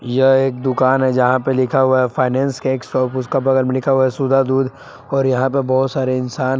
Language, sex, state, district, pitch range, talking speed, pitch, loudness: Hindi, male, Jharkhand, Palamu, 130-135 Hz, 235 wpm, 130 Hz, -17 LUFS